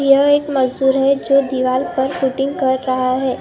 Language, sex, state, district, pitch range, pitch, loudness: Hindi, female, Maharashtra, Gondia, 260-275 Hz, 265 Hz, -16 LUFS